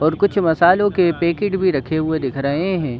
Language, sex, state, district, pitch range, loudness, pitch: Hindi, male, Jharkhand, Sahebganj, 155-190 Hz, -18 LUFS, 170 Hz